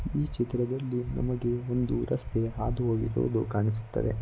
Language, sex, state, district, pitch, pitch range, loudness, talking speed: Kannada, male, Karnataka, Mysore, 120 Hz, 110-125 Hz, -30 LUFS, 100 wpm